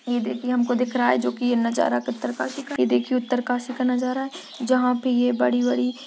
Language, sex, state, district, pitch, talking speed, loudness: Hindi, female, Uttarakhand, Uttarkashi, 245 Hz, 235 wpm, -23 LUFS